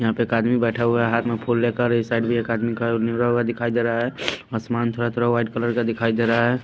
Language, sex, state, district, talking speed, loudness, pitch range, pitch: Hindi, male, Punjab, Pathankot, 290 wpm, -22 LUFS, 115-120 Hz, 120 Hz